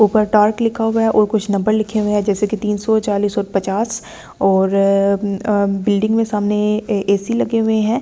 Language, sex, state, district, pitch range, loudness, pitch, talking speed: Hindi, female, Delhi, New Delhi, 200-220 Hz, -17 LUFS, 210 Hz, 185 wpm